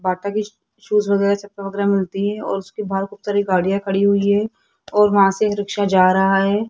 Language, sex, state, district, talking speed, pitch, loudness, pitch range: Hindi, female, Rajasthan, Jaipur, 195 wpm, 200 Hz, -18 LUFS, 195-205 Hz